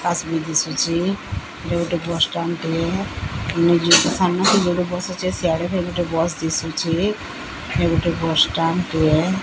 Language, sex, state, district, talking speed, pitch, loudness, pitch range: Odia, female, Odisha, Sambalpur, 45 wpm, 170 Hz, -20 LUFS, 160-175 Hz